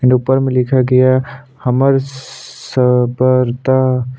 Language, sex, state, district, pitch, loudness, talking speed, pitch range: Hindi, male, Chhattisgarh, Sukma, 130 Hz, -14 LUFS, 115 wpm, 125-130 Hz